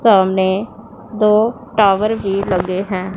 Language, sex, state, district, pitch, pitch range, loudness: Hindi, female, Punjab, Pathankot, 200 Hz, 190-220 Hz, -16 LUFS